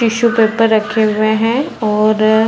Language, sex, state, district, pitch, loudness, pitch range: Hindi, female, Chhattisgarh, Bilaspur, 220 Hz, -13 LUFS, 215-230 Hz